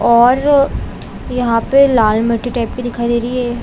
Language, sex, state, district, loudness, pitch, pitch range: Hindi, female, Chhattisgarh, Raigarh, -14 LUFS, 240 Hz, 235-250 Hz